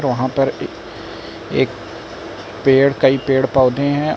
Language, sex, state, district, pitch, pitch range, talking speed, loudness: Hindi, male, Uttar Pradesh, Lucknow, 135 Hz, 130-140 Hz, 130 wpm, -16 LUFS